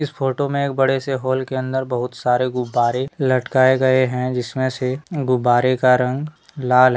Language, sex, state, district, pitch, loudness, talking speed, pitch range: Hindi, male, Jharkhand, Deoghar, 130 Hz, -19 LUFS, 190 wpm, 125-135 Hz